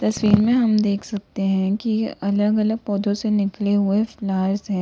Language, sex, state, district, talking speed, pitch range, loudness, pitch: Hindi, female, Uttar Pradesh, Lalitpur, 185 wpm, 200-215 Hz, -20 LUFS, 205 Hz